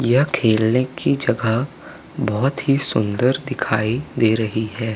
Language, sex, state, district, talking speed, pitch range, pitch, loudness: Hindi, male, Madhya Pradesh, Umaria, 135 wpm, 110-135 Hz, 120 Hz, -19 LUFS